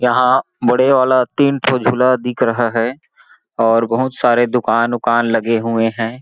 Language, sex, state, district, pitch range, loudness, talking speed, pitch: Hindi, male, Chhattisgarh, Balrampur, 115-130 Hz, -15 LUFS, 165 wpm, 120 Hz